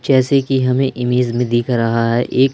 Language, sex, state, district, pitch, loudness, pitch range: Hindi, male, Madhya Pradesh, Umaria, 125 Hz, -16 LUFS, 120-130 Hz